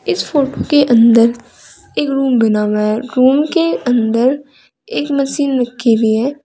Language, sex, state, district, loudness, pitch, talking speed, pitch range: Hindi, female, Uttar Pradesh, Saharanpur, -14 LUFS, 255 Hz, 160 wpm, 230-280 Hz